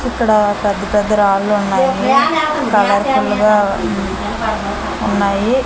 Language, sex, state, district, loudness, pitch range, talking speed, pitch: Telugu, female, Andhra Pradesh, Manyam, -15 LUFS, 200-255 Hz, 85 wpm, 210 Hz